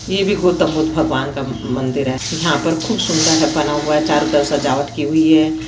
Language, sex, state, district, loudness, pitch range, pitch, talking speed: Hindi, female, Chhattisgarh, Bastar, -16 LUFS, 145-160 Hz, 150 Hz, 230 wpm